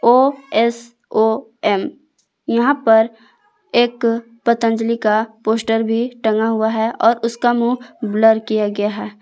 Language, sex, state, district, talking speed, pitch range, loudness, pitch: Hindi, female, Jharkhand, Palamu, 115 wpm, 220-240 Hz, -17 LUFS, 230 Hz